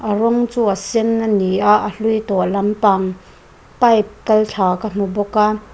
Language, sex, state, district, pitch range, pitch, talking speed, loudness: Mizo, female, Mizoram, Aizawl, 200-220 Hz, 210 Hz, 200 wpm, -17 LUFS